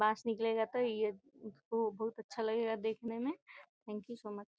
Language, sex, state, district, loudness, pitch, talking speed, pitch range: Hindi, female, Bihar, Gopalganj, -38 LUFS, 225 Hz, 210 wpm, 215-230 Hz